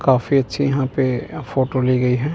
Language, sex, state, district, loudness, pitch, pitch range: Hindi, male, Chandigarh, Chandigarh, -19 LUFS, 130 Hz, 125-140 Hz